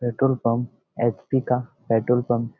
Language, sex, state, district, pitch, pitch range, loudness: Hindi, male, Chhattisgarh, Bastar, 120 Hz, 115-125 Hz, -23 LUFS